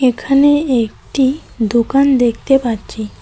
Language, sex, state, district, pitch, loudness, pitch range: Bengali, female, West Bengal, Cooch Behar, 255 Hz, -14 LUFS, 230-275 Hz